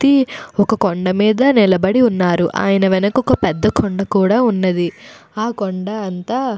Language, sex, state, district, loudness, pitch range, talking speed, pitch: Telugu, female, Andhra Pradesh, Anantapur, -16 LUFS, 190-240 Hz, 145 wpm, 205 Hz